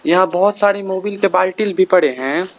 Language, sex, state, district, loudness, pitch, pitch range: Hindi, male, Arunachal Pradesh, Lower Dibang Valley, -15 LUFS, 190 Hz, 185-200 Hz